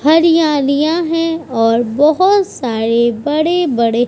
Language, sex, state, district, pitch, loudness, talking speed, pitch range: Hindi, female, Uttar Pradesh, Budaun, 295 Hz, -13 LUFS, 105 wpm, 235-330 Hz